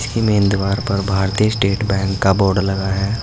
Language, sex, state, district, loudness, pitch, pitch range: Hindi, male, Uttar Pradesh, Saharanpur, -17 LUFS, 100 Hz, 95-105 Hz